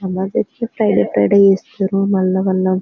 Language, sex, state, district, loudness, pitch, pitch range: Telugu, female, Telangana, Karimnagar, -16 LUFS, 195 Hz, 190-200 Hz